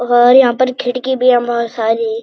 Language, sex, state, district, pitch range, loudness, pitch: Hindi, male, Uttarakhand, Uttarkashi, 235-255 Hz, -13 LUFS, 245 Hz